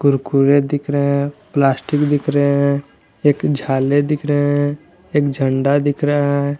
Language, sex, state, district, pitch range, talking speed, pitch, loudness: Hindi, male, Jharkhand, Garhwa, 140-145 Hz, 165 wpm, 145 Hz, -17 LUFS